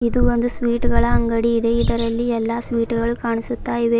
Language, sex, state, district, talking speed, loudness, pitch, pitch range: Kannada, female, Karnataka, Bidar, 165 wpm, -20 LUFS, 235 Hz, 230-240 Hz